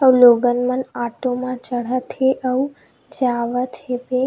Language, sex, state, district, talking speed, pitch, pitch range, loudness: Chhattisgarhi, female, Chhattisgarh, Rajnandgaon, 140 wpm, 255 Hz, 245-255 Hz, -19 LUFS